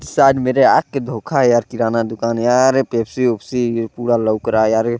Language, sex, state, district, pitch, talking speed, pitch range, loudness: Hindi, male, Chhattisgarh, Balrampur, 120 Hz, 215 wpm, 115-130 Hz, -16 LUFS